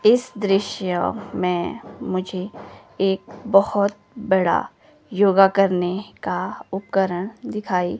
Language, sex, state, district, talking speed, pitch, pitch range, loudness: Hindi, female, Himachal Pradesh, Shimla, 90 wpm, 195 Hz, 185-205 Hz, -21 LUFS